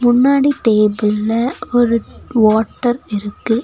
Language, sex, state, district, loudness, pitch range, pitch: Tamil, female, Tamil Nadu, Nilgiris, -15 LUFS, 215-245 Hz, 230 Hz